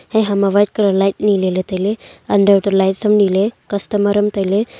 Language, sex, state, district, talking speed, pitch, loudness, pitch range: Wancho, female, Arunachal Pradesh, Longding, 185 wpm, 200 Hz, -15 LUFS, 195-205 Hz